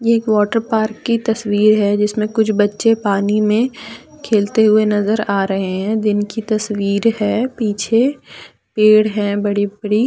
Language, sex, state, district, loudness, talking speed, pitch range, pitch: Hindi, female, Jharkhand, Deoghar, -16 LUFS, 155 wpm, 205-220 Hz, 215 Hz